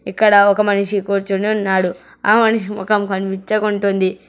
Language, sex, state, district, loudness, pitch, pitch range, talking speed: Telugu, male, Telangana, Hyderabad, -16 LUFS, 200 Hz, 195-210 Hz, 125 wpm